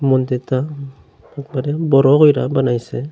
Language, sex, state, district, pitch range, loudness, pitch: Bengali, male, Tripura, Unakoti, 130-145 Hz, -16 LUFS, 135 Hz